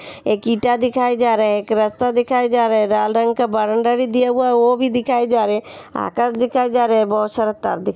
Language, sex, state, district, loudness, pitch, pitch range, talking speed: Hindi, female, Uttar Pradesh, Hamirpur, -17 LUFS, 240 Hz, 220-245 Hz, 270 wpm